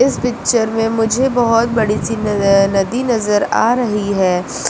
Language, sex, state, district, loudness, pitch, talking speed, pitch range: Hindi, female, Uttar Pradesh, Lucknow, -15 LUFS, 225 Hz, 165 wpm, 205-240 Hz